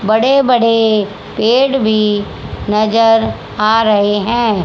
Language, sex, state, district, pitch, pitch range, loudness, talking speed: Hindi, female, Haryana, Charkhi Dadri, 220 Hz, 210-230 Hz, -13 LUFS, 105 wpm